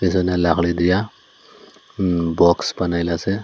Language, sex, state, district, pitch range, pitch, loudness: Bengali, male, Assam, Hailakandi, 85-90 Hz, 85 Hz, -19 LUFS